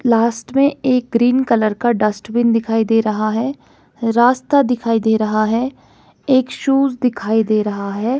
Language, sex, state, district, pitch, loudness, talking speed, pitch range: Hindi, female, Himachal Pradesh, Shimla, 235 Hz, -16 LUFS, 160 wpm, 220-255 Hz